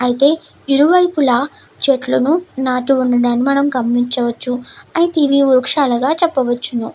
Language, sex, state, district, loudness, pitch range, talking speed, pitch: Telugu, female, Andhra Pradesh, Krishna, -15 LUFS, 245-285 Hz, 95 wpm, 265 Hz